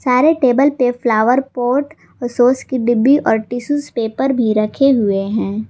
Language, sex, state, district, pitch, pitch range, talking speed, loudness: Hindi, female, Jharkhand, Garhwa, 250 Hz, 225-270 Hz, 160 wpm, -15 LUFS